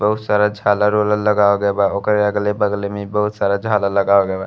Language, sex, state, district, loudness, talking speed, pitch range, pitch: Bhojpuri, male, Uttar Pradesh, Gorakhpur, -17 LUFS, 215 wpm, 100-105 Hz, 105 Hz